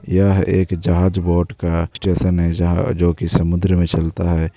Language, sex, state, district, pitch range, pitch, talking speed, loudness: Hindi, male, Bihar, Darbhanga, 85-95 Hz, 85 Hz, 185 wpm, -18 LUFS